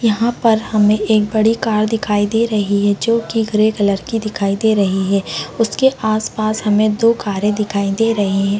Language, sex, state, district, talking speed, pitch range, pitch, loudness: Hindi, female, Bihar, Bhagalpur, 195 wpm, 205-225 Hz, 215 Hz, -16 LUFS